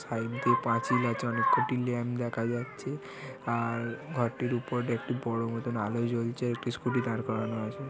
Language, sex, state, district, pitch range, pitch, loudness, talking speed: Bengali, female, West Bengal, Jhargram, 115-125 Hz, 120 Hz, -31 LUFS, 165 wpm